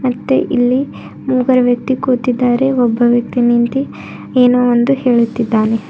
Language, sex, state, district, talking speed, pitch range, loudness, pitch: Kannada, female, Karnataka, Bidar, 110 wpm, 240-255 Hz, -14 LUFS, 245 Hz